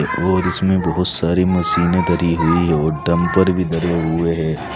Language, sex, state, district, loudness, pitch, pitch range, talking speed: Hindi, male, Uttar Pradesh, Saharanpur, -17 LUFS, 85 Hz, 80-90 Hz, 165 wpm